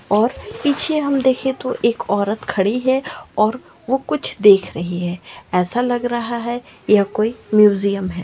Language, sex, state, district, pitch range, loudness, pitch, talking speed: Marwari, female, Rajasthan, Churu, 200-255 Hz, -18 LUFS, 220 Hz, 165 wpm